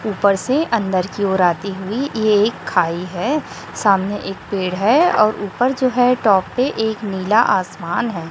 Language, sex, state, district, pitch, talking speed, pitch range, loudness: Hindi, female, Chhattisgarh, Raipur, 205 Hz, 180 wpm, 190-230 Hz, -18 LUFS